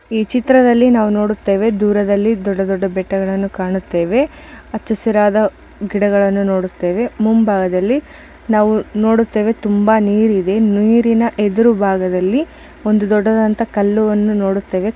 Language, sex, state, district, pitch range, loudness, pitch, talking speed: Kannada, female, Karnataka, Chamarajanagar, 200-225 Hz, -15 LUFS, 210 Hz, 100 wpm